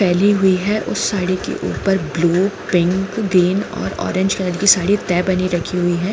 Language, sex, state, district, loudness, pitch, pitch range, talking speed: Hindi, female, Jharkhand, Jamtara, -17 LUFS, 185 Hz, 180-195 Hz, 195 wpm